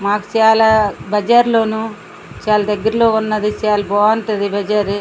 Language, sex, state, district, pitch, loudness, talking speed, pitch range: Telugu, female, Andhra Pradesh, Srikakulam, 210 Hz, -15 LUFS, 145 wpm, 205-220 Hz